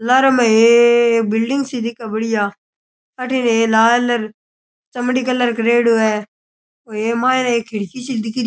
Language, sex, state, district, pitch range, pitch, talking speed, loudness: Rajasthani, male, Rajasthan, Churu, 225-250 Hz, 235 Hz, 165 wpm, -16 LUFS